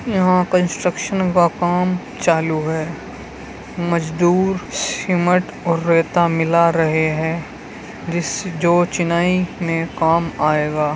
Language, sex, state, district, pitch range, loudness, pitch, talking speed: Hindi, male, Uttar Pradesh, Muzaffarnagar, 165-180 Hz, -18 LUFS, 170 Hz, 105 wpm